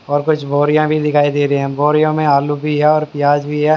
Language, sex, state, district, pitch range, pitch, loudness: Hindi, male, Haryana, Jhajjar, 145-155 Hz, 150 Hz, -14 LUFS